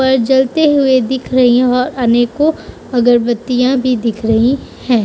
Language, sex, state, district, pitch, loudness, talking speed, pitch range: Hindi, female, Uttar Pradesh, Budaun, 250 Hz, -13 LUFS, 140 wpm, 240-265 Hz